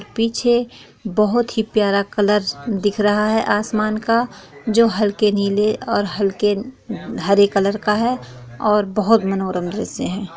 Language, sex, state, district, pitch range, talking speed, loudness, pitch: Hindi, female, Bihar, East Champaran, 200-225 Hz, 135 wpm, -18 LUFS, 210 Hz